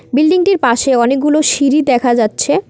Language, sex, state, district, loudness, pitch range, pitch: Bengali, female, West Bengal, Cooch Behar, -12 LUFS, 245-305 Hz, 275 Hz